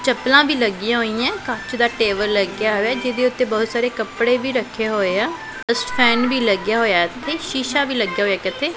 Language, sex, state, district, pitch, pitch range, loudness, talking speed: Punjabi, female, Punjab, Pathankot, 235 Hz, 215-250 Hz, -19 LUFS, 210 wpm